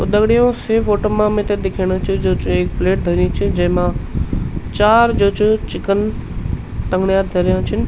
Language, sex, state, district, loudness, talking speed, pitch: Garhwali, male, Uttarakhand, Tehri Garhwal, -17 LUFS, 165 wpm, 200 Hz